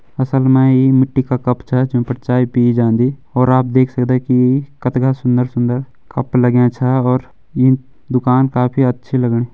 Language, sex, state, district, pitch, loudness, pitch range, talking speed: Hindi, male, Uttarakhand, Uttarkashi, 125 Hz, -15 LUFS, 125-130 Hz, 180 wpm